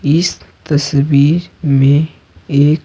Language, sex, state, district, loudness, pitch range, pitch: Hindi, male, Bihar, Patna, -13 LUFS, 140-160 Hz, 145 Hz